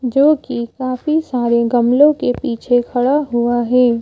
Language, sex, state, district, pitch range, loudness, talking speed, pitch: Hindi, female, Madhya Pradesh, Bhopal, 240-275 Hz, -15 LUFS, 150 wpm, 250 Hz